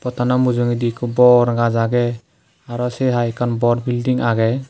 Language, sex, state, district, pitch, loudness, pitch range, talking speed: Chakma, male, Tripura, West Tripura, 120 Hz, -17 LUFS, 120-125 Hz, 165 wpm